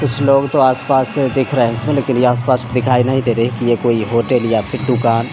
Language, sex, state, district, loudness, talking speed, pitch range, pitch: Hindi, male, Bihar, Samastipur, -15 LUFS, 270 wpm, 120-130 Hz, 125 Hz